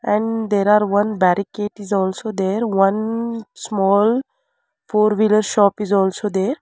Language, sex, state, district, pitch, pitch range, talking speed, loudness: English, female, Karnataka, Bangalore, 210 Hz, 200-220 Hz, 145 wpm, -18 LUFS